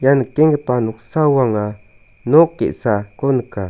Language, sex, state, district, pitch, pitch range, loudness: Garo, male, Meghalaya, South Garo Hills, 125 Hz, 105-140 Hz, -16 LUFS